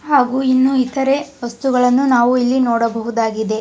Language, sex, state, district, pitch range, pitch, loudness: Kannada, female, Karnataka, Dharwad, 235-265 Hz, 255 Hz, -16 LUFS